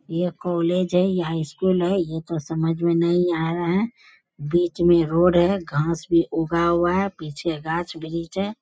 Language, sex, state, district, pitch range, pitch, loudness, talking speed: Hindi, female, Bihar, Bhagalpur, 165-180 Hz, 170 Hz, -22 LUFS, 180 wpm